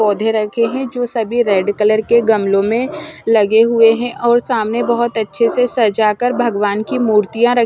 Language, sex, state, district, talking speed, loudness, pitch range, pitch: Hindi, male, Punjab, Fazilka, 180 wpm, -15 LUFS, 215-240 Hz, 230 Hz